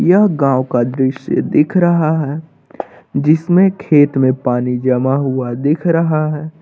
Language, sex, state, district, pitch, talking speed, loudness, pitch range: Hindi, male, Uttar Pradesh, Lucknow, 145 Hz, 145 wpm, -14 LUFS, 130-160 Hz